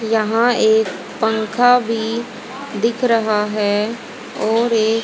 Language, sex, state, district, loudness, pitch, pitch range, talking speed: Hindi, female, Haryana, Jhajjar, -17 LUFS, 225 Hz, 220-235 Hz, 105 wpm